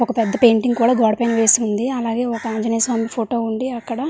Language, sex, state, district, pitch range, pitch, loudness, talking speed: Telugu, female, Andhra Pradesh, Visakhapatnam, 225-240 Hz, 230 Hz, -18 LUFS, 190 wpm